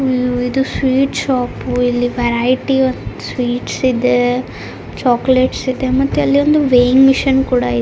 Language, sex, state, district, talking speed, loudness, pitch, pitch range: Kannada, female, Karnataka, Raichur, 125 wpm, -15 LUFS, 255 Hz, 245-265 Hz